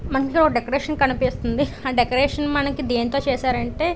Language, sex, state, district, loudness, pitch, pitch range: Telugu, female, Andhra Pradesh, Visakhapatnam, -21 LUFS, 275 Hz, 255-285 Hz